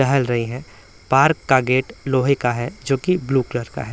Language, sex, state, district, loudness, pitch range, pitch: Hindi, male, Bihar, Patna, -19 LUFS, 125-140 Hz, 130 Hz